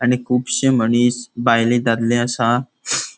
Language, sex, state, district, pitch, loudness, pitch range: Konkani, male, Goa, North and South Goa, 120 Hz, -17 LUFS, 120-125 Hz